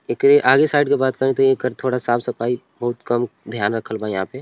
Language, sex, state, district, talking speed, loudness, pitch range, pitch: Bhojpuri, male, Uttar Pradesh, Ghazipur, 260 wpm, -19 LUFS, 120-135 Hz, 125 Hz